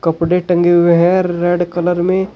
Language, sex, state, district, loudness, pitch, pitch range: Hindi, male, Uttar Pradesh, Shamli, -13 LUFS, 175 Hz, 175-180 Hz